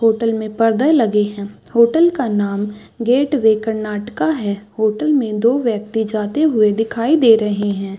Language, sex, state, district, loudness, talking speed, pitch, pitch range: Hindi, female, Chhattisgarh, Raigarh, -16 LUFS, 160 wpm, 220 Hz, 210-240 Hz